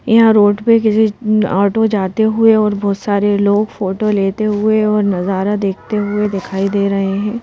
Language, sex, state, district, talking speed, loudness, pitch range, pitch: Hindi, female, Madhya Pradesh, Bhopal, 175 wpm, -14 LUFS, 200-215 Hz, 210 Hz